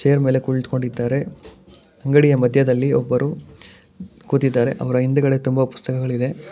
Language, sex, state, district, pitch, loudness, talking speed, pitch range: Kannada, male, Karnataka, Bangalore, 130 Hz, -19 LUFS, 100 wpm, 125-140 Hz